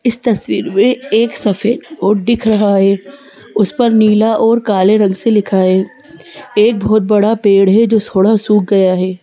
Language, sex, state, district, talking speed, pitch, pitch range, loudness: Hindi, female, Madhya Pradesh, Bhopal, 180 wpm, 215 Hz, 200-230 Hz, -12 LUFS